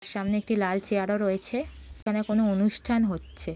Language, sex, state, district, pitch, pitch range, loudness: Bengali, female, West Bengal, Jhargram, 205 Hz, 195-215 Hz, -27 LUFS